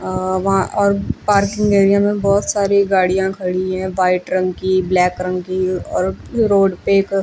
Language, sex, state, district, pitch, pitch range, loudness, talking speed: Hindi, female, Chandigarh, Chandigarh, 190 Hz, 185-200 Hz, -17 LUFS, 165 wpm